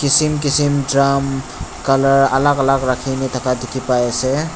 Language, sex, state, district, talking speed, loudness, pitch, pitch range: Nagamese, male, Nagaland, Dimapur, 145 wpm, -16 LUFS, 135 Hz, 130-140 Hz